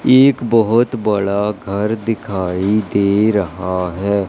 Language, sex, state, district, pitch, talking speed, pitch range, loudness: Hindi, male, Madhya Pradesh, Katni, 105 Hz, 110 wpm, 100-110 Hz, -16 LUFS